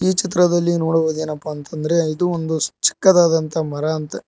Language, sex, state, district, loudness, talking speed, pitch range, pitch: Kannada, male, Karnataka, Koppal, -18 LUFS, 125 wpm, 155-175 Hz, 160 Hz